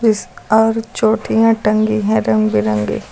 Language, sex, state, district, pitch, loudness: Hindi, female, Uttar Pradesh, Lucknow, 215 Hz, -15 LUFS